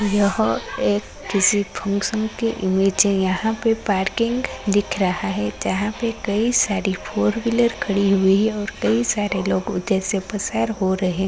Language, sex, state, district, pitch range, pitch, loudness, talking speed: Hindi, female, Uttarakhand, Tehri Garhwal, 190-220 Hz, 200 Hz, -20 LUFS, 165 wpm